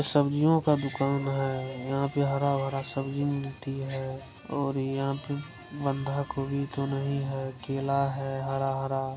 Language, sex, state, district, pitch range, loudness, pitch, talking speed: Hindi, male, Bihar, Saran, 135-140 Hz, -30 LUFS, 135 Hz, 135 wpm